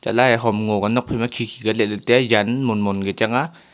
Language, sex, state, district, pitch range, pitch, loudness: Wancho, male, Arunachal Pradesh, Longding, 105-120 Hz, 115 Hz, -19 LUFS